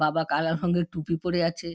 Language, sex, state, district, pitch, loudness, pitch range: Bengali, female, West Bengal, Dakshin Dinajpur, 170 Hz, -26 LUFS, 160-175 Hz